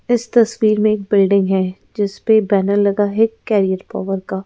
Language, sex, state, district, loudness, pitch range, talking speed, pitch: Hindi, female, Madhya Pradesh, Bhopal, -16 LUFS, 195-220 Hz, 190 wpm, 205 Hz